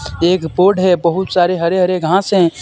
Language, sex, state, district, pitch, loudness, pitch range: Hindi, male, Jharkhand, Deoghar, 180 Hz, -14 LUFS, 170-185 Hz